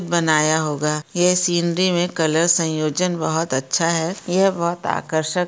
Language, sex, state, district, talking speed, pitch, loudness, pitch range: Hindi, female, Bihar, Samastipur, 155 wpm, 170 Hz, -19 LUFS, 160-180 Hz